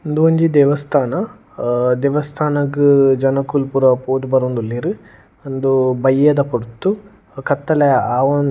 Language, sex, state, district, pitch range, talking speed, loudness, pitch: Tulu, male, Karnataka, Dakshina Kannada, 130-145 Hz, 100 wpm, -16 LUFS, 140 Hz